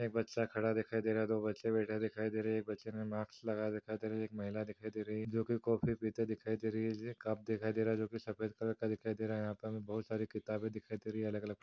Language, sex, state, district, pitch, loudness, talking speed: Hindi, male, Maharashtra, Aurangabad, 110 Hz, -39 LUFS, 295 wpm